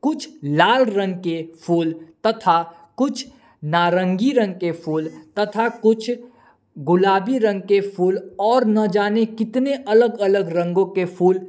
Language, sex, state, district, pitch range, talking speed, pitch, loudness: Hindi, male, Jharkhand, Palamu, 175-225 Hz, 135 wpm, 195 Hz, -19 LUFS